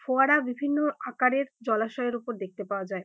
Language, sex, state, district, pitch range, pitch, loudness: Bengali, female, West Bengal, North 24 Parganas, 220-270 Hz, 245 Hz, -27 LUFS